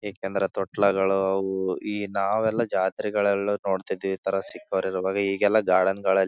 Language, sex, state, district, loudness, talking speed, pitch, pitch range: Kannada, male, Karnataka, Bijapur, -25 LUFS, 135 wpm, 95 Hz, 95-100 Hz